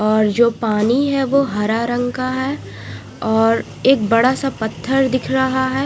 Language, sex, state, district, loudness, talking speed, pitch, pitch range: Hindi, female, Punjab, Fazilka, -17 LUFS, 175 wpm, 245 Hz, 225-265 Hz